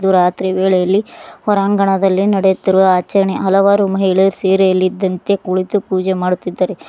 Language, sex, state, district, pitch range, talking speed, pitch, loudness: Kannada, female, Karnataka, Koppal, 185-195 Hz, 105 wpm, 190 Hz, -14 LUFS